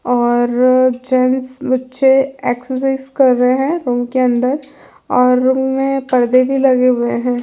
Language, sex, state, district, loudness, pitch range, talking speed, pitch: Hindi, female, Bihar, Lakhisarai, -14 LUFS, 250-265 Hz, 145 wpm, 255 Hz